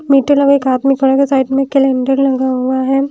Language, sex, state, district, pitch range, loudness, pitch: Hindi, female, Haryana, Rohtak, 265-275 Hz, -13 LUFS, 270 Hz